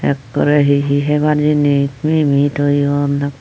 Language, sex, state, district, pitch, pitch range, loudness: Chakma, female, Tripura, Unakoti, 145 Hz, 140-150 Hz, -15 LUFS